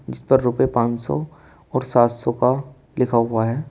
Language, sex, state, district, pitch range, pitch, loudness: Hindi, male, Uttar Pradesh, Shamli, 120-135 Hz, 125 Hz, -20 LUFS